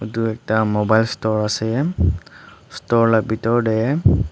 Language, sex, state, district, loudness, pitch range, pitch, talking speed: Nagamese, male, Nagaland, Dimapur, -19 LUFS, 110-115 Hz, 110 Hz, 125 wpm